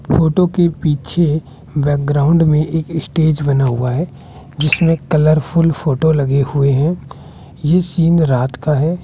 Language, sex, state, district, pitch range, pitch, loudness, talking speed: Hindi, male, Bihar, West Champaran, 140-165 Hz, 155 Hz, -15 LUFS, 140 wpm